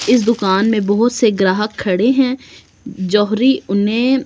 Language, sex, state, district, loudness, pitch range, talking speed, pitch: Hindi, female, Delhi, New Delhi, -15 LUFS, 205-245 Hz, 155 wpm, 220 Hz